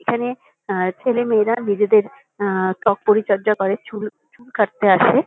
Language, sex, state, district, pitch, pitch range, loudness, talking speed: Bengali, female, West Bengal, Kolkata, 210 Hz, 200-240 Hz, -19 LUFS, 135 wpm